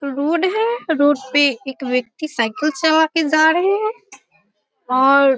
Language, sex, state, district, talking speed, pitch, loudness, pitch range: Hindi, female, Bihar, Muzaffarpur, 145 wpm, 290 Hz, -17 LUFS, 260-320 Hz